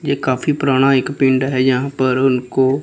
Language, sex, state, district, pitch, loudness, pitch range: Hindi, female, Chandigarh, Chandigarh, 135 Hz, -16 LUFS, 130-135 Hz